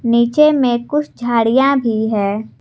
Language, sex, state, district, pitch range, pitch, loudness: Hindi, female, Jharkhand, Garhwa, 225-275 Hz, 240 Hz, -15 LUFS